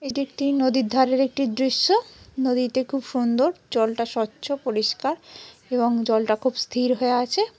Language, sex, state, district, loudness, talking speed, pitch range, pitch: Bengali, female, West Bengal, Malda, -23 LUFS, 140 wpm, 240-275 Hz, 255 Hz